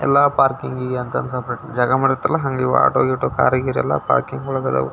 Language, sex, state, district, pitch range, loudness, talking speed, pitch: Kannada, male, Karnataka, Belgaum, 125-135 Hz, -19 LUFS, 110 wpm, 130 Hz